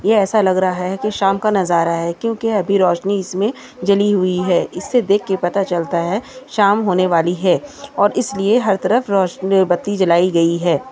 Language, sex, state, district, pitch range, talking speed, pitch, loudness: Hindi, female, Chhattisgarh, Kabirdham, 180-210 Hz, 190 wpm, 195 Hz, -17 LUFS